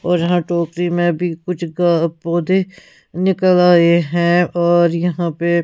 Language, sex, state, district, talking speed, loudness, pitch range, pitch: Hindi, female, Punjab, Pathankot, 150 wpm, -16 LUFS, 170-175 Hz, 175 Hz